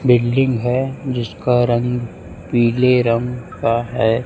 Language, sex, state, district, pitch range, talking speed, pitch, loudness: Hindi, male, Chhattisgarh, Raipur, 115-125 Hz, 115 wpm, 120 Hz, -18 LUFS